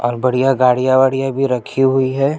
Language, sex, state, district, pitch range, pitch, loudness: Hindi, male, Chhattisgarh, Jashpur, 125-135 Hz, 130 Hz, -15 LUFS